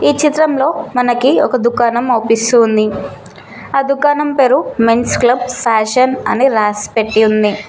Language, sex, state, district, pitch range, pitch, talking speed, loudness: Telugu, female, Telangana, Mahabubabad, 220-270 Hz, 240 Hz, 125 wpm, -13 LUFS